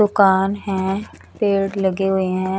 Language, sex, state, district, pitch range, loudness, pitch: Hindi, female, Chandigarh, Chandigarh, 190-200 Hz, -19 LUFS, 195 Hz